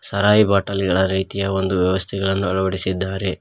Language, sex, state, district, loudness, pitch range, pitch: Kannada, male, Karnataka, Koppal, -18 LUFS, 95-100 Hz, 95 Hz